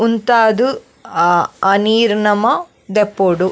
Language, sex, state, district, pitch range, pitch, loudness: Tulu, female, Karnataka, Dakshina Kannada, 195-230 Hz, 210 Hz, -14 LUFS